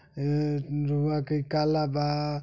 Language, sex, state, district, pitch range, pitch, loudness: Bhojpuri, male, Uttar Pradesh, Deoria, 145-150 Hz, 150 Hz, -28 LUFS